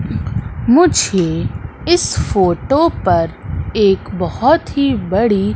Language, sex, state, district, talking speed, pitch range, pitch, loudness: Hindi, female, Madhya Pradesh, Katni, 85 wpm, 180-285 Hz, 200 Hz, -15 LUFS